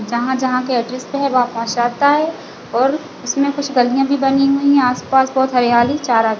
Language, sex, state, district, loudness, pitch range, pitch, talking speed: Hindi, female, Chhattisgarh, Bilaspur, -16 LUFS, 240-280 Hz, 260 Hz, 185 wpm